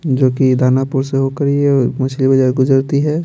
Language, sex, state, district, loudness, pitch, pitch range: Hindi, male, Bihar, Patna, -14 LUFS, 135 Hz, 130-140 Hz